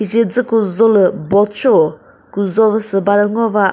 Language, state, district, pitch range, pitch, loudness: Chakhesang, Nagaland, Dimapur, 200-225 Hz, 210 Hz, -14 LUFS